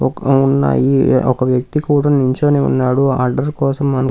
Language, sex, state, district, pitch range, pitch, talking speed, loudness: Telugu, male, Andhra Pradesh, Krishna, 130-140 Hz, 135 Hz, 160 wpm, -14 LUFS